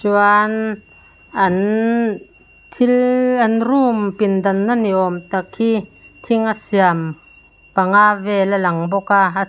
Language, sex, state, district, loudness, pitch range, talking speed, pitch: Mizo, female, Mizoram, Aizawl, -16 LUFS, 190-225 Hz, 135 wpm, 205 Hz